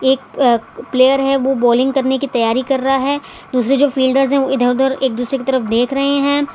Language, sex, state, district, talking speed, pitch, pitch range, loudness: Hindi, female, Gujarat, Valsad, 245 wpm, 265 Hz, 250-275 Hz, -15 LUFS